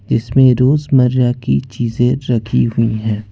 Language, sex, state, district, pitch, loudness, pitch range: Hindi, male, Jharkhand, Ranchi, 120 Hz, -14 LUFS, 115-130 Hz